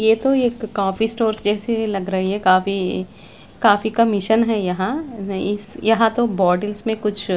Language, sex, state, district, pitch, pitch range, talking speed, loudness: Hindi, female, Chandigarh, Chandigarh, 210 Hz, 195-225 Hz, 165 wpm, -19 LUFS